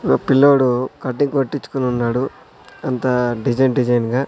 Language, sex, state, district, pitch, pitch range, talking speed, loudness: Telugu, male, Andhra Pradesh, Sri Satya Sai, 130 Hz, 125-135 Hz, 125 wpm, -18 LUFS